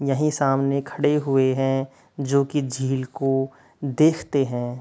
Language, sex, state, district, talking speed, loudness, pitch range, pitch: Hindi, male, Uttar Pradesh, Hamirpur, 135 wpm, -23 LUFS, 135-145 Hz, 135 Hz